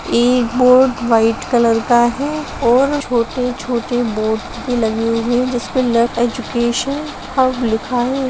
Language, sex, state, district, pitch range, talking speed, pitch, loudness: Hindi, female, Bihar, Sitamarhi, 235-255 Hz, 135 wpm, 245 Hz, -16 LUFS